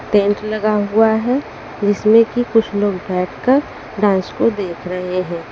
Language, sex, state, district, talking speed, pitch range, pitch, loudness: Hindi, female, Haryana, Rohtak, 150 wpm, 185-225 Hz, 205 Hz, -17 LUFS